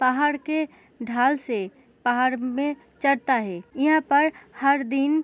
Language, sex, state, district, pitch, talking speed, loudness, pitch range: Hindi, female, Bihar, Gopalganj, 275 Hz, 150 wpm, -24 LUFS, 250-290 Hz